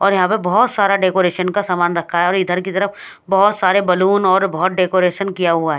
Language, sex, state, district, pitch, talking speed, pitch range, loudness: Hindi, female, Odisha, Khordha, 185 Hz, 240 wpm, 180-195 Hz, -16 LUFS